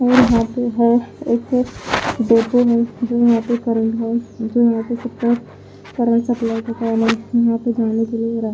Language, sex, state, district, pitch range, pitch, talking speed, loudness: Hindi, female, Punjab, Pathankot, 230-240 Hz, 235 Hz, 100 wpm, -18 LUFS